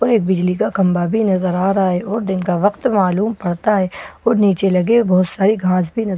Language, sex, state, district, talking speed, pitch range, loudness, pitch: Hindi, female, Bihar, Katihar, 260 wpm, 185-215 Hz, -16 LUFS, 195 Hz